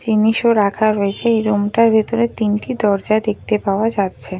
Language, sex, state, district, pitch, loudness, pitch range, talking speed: Bengali, female, West Bengal, Kolkata, 215 Hz, -16 LUFS, 205-225 Hz, 175 wpm